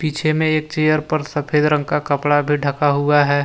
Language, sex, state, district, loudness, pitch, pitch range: Hindi, male, Jharkhand, Deoghar, -18 LUFS, 150 Hz, 145-155 Hz